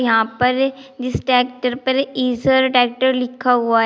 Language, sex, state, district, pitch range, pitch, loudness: Hindi, female, Uttar Pradesh, Shamli, 245-260 Hz, 250 Hz, -18 LUFS